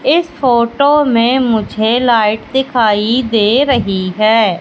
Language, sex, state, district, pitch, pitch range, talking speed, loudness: Hindi, female, Madhya Pradesh, Katni, 235 Hz, 220-265 Hz, 115 wpm, -12 LUFS